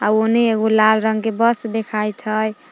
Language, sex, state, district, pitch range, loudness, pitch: Magahi, female, Jharkhand, Palamu, 215-225 Hz, -17 LUFS, 220 Hz